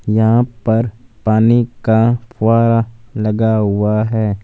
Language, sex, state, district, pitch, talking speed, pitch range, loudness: Hindi, male, Punjab, Fazilka, 110 Hz, 110 wpm, 110-115 Hz, -15 LUFS